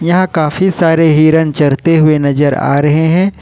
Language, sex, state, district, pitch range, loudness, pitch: Hindi, male, Jharkhand, Ranchi, 150-170 Hz, -11 LUFS, 160 Hz